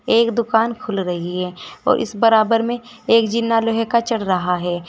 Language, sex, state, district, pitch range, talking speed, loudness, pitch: Hindi, female, Uttar Pradesh, Saharanpur, 180-230 Hz, 195 wpm, -18 LUFS, 225 Hz